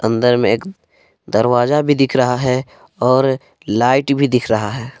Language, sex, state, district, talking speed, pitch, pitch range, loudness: Hindi, male, Jharkhand, Palamu, 170 wpm, 125 Hz, 120-135 Hz, -16 LUFS